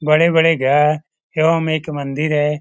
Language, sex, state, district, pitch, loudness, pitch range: Hindi, male, Bihar, Lakhisarai, 155 Hz, -16 LUFS, 150-160 Hz